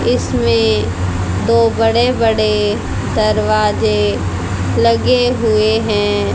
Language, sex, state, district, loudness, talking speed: Hindi, female, Haryana, Jhajjar, -14 LUFS, 75 wpm